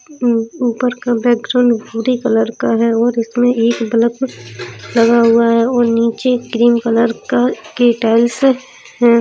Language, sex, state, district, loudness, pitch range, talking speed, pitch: Hindi, female, Uttar Pradesh, Jalaun, -14 LUFS, 230-245 Hz, 150 wpm, 235 Hz